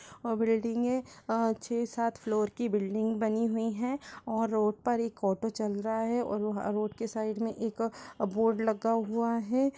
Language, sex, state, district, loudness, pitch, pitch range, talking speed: Hindi, female, Chhattisgarh, Raigarh, -31 LUFS, 225 Hz, 215-230 Hz, 180 wpm